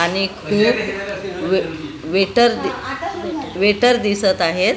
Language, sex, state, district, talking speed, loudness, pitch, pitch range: Marathi, female, Maharashtra, Gondia, 115 wpm, -18 LUFS, 195 Hz, 185-215 Hz